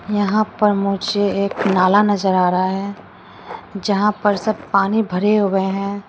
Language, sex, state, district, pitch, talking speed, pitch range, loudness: Hindi, female, Arunachal Pradesh, Lower Dibang Valley, 200 Hz, 160 wpm, 195-205 Hz, -17 LUFS